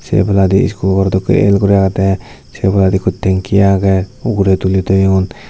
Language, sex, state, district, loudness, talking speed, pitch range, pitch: Chakma, male, Tripura, Dhalai, -13 LUFS, 165 wpm, 95-100 Hz, 95 Hz